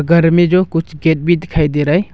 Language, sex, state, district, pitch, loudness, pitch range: Hindi, male, Arunachal Pradesh, Longding, 165 Hz, -14 LUFS, 155-175 Hz